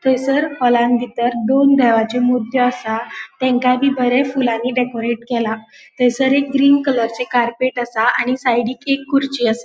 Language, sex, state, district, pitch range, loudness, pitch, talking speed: Konkani, female, Goa, North and South Goa, 240-265 Hz, -16 LUFS, 250 Hz, 150 wpm